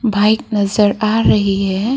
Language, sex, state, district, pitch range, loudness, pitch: Hindi, female, Arunachal Pradesh, Lower Dibang Valley, 200-225 Hz, -15 LUFS, 210 Hz